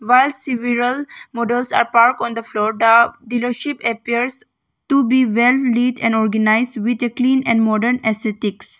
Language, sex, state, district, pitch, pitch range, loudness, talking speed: English, female, Arunachal Pradesh, Longding, 240 Hz, 225-250 Hz, -17 LUFS, 155 wpm